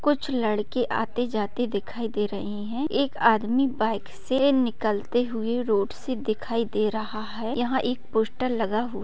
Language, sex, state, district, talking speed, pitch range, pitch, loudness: Hindi, female, Bihar, Bhagalpur, 165 wpm, 215-245 Hz, 230 Hz, -26 LUFS